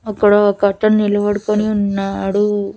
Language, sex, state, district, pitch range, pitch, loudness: Telugu, female, Andhra Pradesh, Annamaya, 200-210 Hz, 205 Hz, -15 LUFS